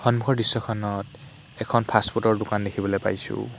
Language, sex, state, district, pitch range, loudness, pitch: Assamese, male, Assam, Hailakandi, 105-120 Hz, -24 LUFS, 115 Hz